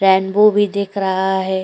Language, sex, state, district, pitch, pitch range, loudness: Hindi, female, Goa, North and South Goa, 190 Hz, 190-200 Hz, -16 LUFS